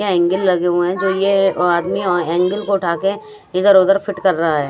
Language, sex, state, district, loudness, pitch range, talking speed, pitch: Hindi, female, Punjab, Fazilka, -16 LUFS, 175-195 Hz, 180 wpm, 185 Hz